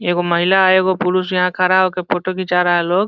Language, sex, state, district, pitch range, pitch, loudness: Hindi, male, Bihar, Saran, 180-185 Hz, 185 Hz, -15 LUFS